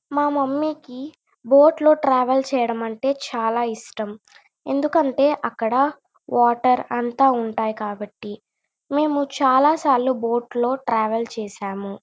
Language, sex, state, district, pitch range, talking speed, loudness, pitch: Telugu, female, Andhra Pradesh, Chittoor, 225-280 Hz, 115 wpm, -20 LUFS, 250 Hz